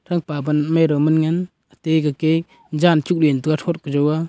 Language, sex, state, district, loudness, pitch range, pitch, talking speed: Wancho, male, Arunachal Pradesh, Longding, -19 LUFS, 150-170 Hz, 160 Hz, 155 wpm